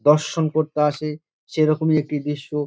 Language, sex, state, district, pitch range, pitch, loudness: Bengali, male, West Bengal, Dakshin Dinajpur, 150-155 Hz, 150 Hz, -21 LUFS